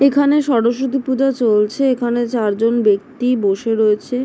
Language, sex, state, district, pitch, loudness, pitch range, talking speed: Bengali, female, West Bengal, Jhargram, 240 Hz, -16 LUFS, 220-270 Hz, 155 wpm